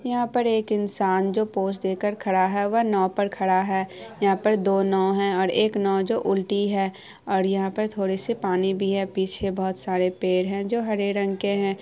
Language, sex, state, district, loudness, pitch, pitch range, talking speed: Hindi, female, Bihar, Araria, -24 LUFS, 195 Hz, 190-205 Hz, 210 wpm